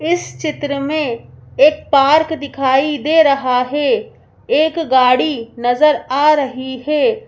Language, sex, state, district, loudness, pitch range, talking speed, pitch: Hindi, female, Madhya Pradesh, Bhopal, -15 LUFS, 260-310 Hz, 125 wpm, 290 Hz